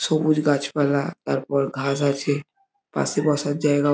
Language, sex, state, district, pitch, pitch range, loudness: Bengali, male, West Bengal, Jhargram, 145 Hz, 140-155 Hz, -23 LUFS